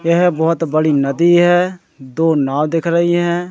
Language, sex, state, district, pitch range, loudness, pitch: Hindi, male, Madhya Pradesh, Katni, 155-175 Hz, -15 LUFS, 165 Hz